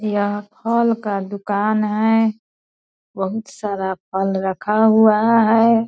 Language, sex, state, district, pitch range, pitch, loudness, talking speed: Hindi, female, Bihar, Purnia, 200-225 Hz, 215 Hz, -18 LUFS, 110 wpm